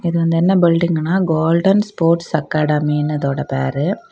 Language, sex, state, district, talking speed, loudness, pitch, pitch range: Tamil, female, Tamil Nadu, Kanyakumari, 130 wpm, -16 LUFS, 165 Hz, 150-170 Hz